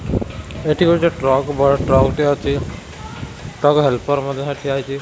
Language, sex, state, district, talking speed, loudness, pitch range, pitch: Odia, male, Odisha, Khordha, 155 wpm, -17 LUFS, 135-145 Hz, 140 Hz